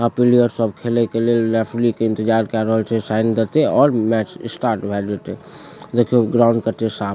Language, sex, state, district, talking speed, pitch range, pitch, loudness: Maithili, male, Bihar, Supaul, 200 wpm, 110-120 Hz, 115 Hz, -18 LUFS